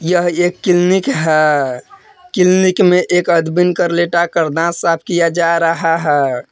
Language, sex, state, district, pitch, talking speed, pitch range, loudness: Hindi, male, Jharkhand, Palamu, 170 Hz, 155 wpm, 165-180 Hz, -14 LUFS